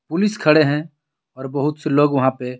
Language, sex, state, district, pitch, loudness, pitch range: Hindi, male, Jharkhand, Garhwa, 145 Hz, -18 LUFS, 135-155 Hz